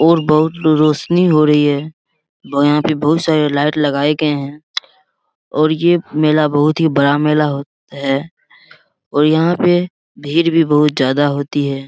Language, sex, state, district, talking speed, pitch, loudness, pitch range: Hindi, male, Bihar, Araria, 160 wpm, 150 Hz, -14 LUFS, 145-160 Hz